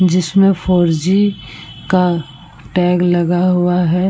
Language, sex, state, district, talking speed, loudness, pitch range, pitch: Hindi, female, Bihar, Vaishali, 115 wpm, -14 LUFS, 175-185 Hz, 180 Hz